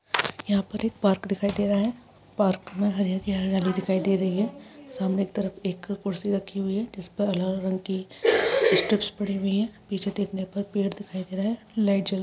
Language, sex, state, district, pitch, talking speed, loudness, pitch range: Hindi, female, Uttar Pradesh, Etah, 200 Hz, 215 wpm, -26 LUFS, 190-205 Hz